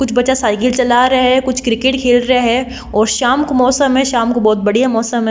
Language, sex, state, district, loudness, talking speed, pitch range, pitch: Marwari, female, Rajasthan, Nagaur, -13 LUFS, 250 wpm, 235-260 Hz, 250 Hz